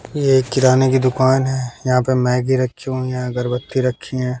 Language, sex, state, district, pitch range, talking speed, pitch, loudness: Hindi, male, Bihar, West Champaran, 125-130 Hz, 190 wpm, 130 Hz, -18 LUFS